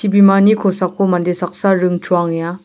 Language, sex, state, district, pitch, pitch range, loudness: Garo, male, Meghalaya, South Garo Hills, 185 Hz, 175-195 Hz, -14 LUFS